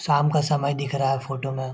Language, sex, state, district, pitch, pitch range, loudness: Hindi, male, Bihar, Lakhisarai, 140 Hz, 135-145 Hz, -24 LUFS